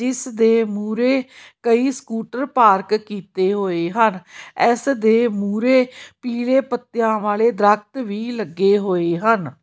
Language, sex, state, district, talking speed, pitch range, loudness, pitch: Punjabi, female, Punjab, Kapurthala, 125 wpm, 205-245 Hz, -19 LUFS, 225 Hz